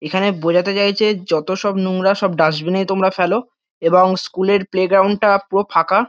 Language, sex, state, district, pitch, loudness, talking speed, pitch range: Bengali, male, West Bengal, North 24 Parganas, 190 Hz, -16 LUFS, 185 wpm, 180-200 Hz